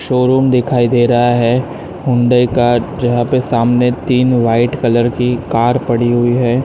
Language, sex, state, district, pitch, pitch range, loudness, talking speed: Hindi, male, Maharashtra, Mumbai Suburban, 120 Hz, 120-125 Hz, -13 LUFS, 160 wpm